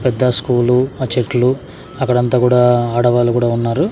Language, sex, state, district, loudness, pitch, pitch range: Telugu, male, Andhra Pradesh, Sri Satya Sai, -15 LUFS, 125 Hz, 120-130 Hz